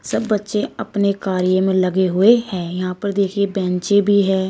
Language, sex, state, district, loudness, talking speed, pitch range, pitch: Hindi, female, Uttar Pradesh, Shamli, -18 LUFS, 185 wpm, 185-205 Hz, 195 Hz